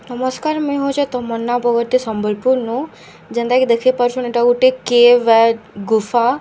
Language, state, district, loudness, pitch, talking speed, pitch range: Sambalpuri, Odisha, Sambalpur, -16 LUFS, 245 Hz, 160 wpm, 230-255 Hz